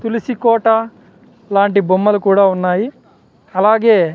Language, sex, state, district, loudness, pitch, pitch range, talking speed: Telugu, male, Andhra Pradesh, Sri Satya Sai, -14 LUFS, 210 Hz, 195-230 Hz, 100 wpm